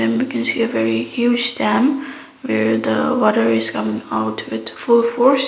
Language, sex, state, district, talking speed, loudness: English, female, Sikkim, Gangtok, 175 wpm, -18 LUFS